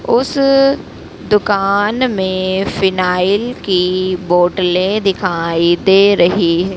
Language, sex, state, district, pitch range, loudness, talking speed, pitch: Hindi, female, Madhya Pradesh, Dhar, 180-205 Hz, -14 LUFS, 90 wpm, 190 Hz